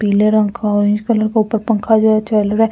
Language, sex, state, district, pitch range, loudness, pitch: Hindi, female, Delhi, New Delhi, 210-220 Hz, -15 LUFS, 215 Hz